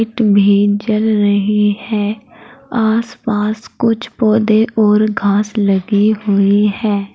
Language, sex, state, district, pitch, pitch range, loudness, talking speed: Hindi, female, Uttar Pradesh, Saharanpur, 215 Hz, 205-220 Hz, -14 LUFS, 90 wpm